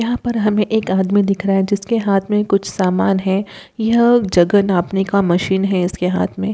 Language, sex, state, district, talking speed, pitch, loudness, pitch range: Hindi, female, Uttar Pradesh, Hamirpur, 210 wpm, 195 Hz, -16 LUFS, 190-210 Hz